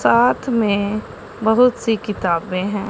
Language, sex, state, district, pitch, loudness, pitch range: Hindi, female, Punjab, Pathankot, 210 Hz, -18 LUFS, 200-225 Hz